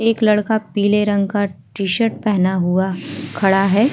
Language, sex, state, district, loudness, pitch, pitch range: Hindi, female, Uttar Pradesh, Hamirpur, -18 LUFS, 205 Hz, 190-215 Hz